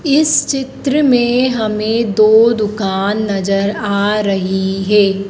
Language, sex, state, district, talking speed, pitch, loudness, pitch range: Hindi, female, Madhya Pradesh, Dhar, 115 wpm, 210 Hz, -14 LUFS, 195-245 Hz